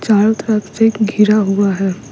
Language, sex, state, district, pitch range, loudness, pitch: Hindi, female, Bihar, Patna, 200-220 Hz, -14 LUFS, 210 Hz